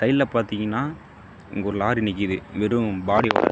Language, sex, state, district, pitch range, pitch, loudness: Tamil, male, Tamil Nadu, Namakkal, 100-120 Hz, 105 Hz, -23 LUFS